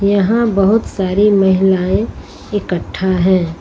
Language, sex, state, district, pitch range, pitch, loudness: Hindi, female, Uttar Pradesh, Lucknow, 185-205 Hz, 190 Hz, -14 LUFS